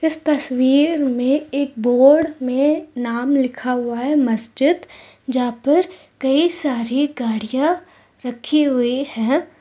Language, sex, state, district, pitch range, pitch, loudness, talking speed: Hindi, female, Karnataka, Bangalore, 245-300 Hz, 275 Hz, -18 LUFS, 110 wpm